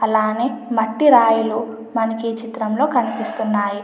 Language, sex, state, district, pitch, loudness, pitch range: Telugu, female, Andhra Pradesh, Anantapur, 225 Hz, -18 LUFS, 220-235 Hz